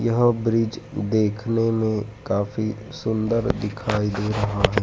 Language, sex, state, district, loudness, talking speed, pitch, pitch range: Hindi, male, Madhya Pradesh, Dhar, -23 LUFS, 125 wpm, 110 Hz, 105-115 Hz